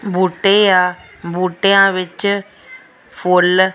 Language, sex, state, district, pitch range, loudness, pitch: Punjabi, female, Punjab, Fazilka, 180-200 Hz, -14 LUFS, 185 Hz